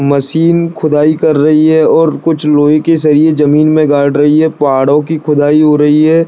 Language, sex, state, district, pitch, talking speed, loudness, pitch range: Hindi, male, Bihar, Darbhanga, 150 Hz, 210 wpm, -9 LUFS, 145-160 Hz